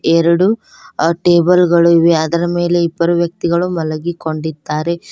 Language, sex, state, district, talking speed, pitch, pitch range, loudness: Kannada, female, Karnataka, Koppal, 115 wpm, 170 Hz, 165-175 Hz, -14 LUFS